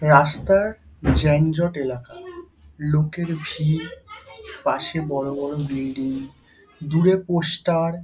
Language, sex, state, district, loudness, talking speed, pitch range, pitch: Bengali, male, West Bengal, Dakshin Dinajpur, -22 LUFS, 90 wpm, 145-175 Hz, 160 Hz